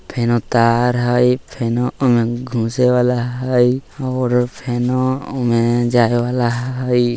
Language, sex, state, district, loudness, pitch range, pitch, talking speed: Bajjika, male, Bihar, Vaishali, -17 LUFS, 120-125 Hz, 125 Hz, 115 wpm